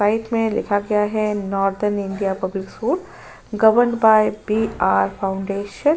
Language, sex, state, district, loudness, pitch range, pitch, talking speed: Hindi, female, Uttar Pradesh, Jyotiba Phule Nagar, -20 LUFS, 195-220 Hz, 210 Hz, 140 wpm